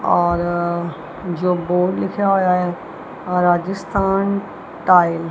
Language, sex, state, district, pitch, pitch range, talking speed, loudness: Punjabi, female, Punjab, Kapurthala, 180 Hz, 175-190 Hz, 100 wpm, -18 LUFS